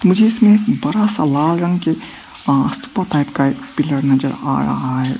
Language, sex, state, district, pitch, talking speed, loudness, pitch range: Hindi, male, Arunachal Pradesh, Papum Pare, 160 Hz, 175 wpm, -16 LUFS, 140-210 Hz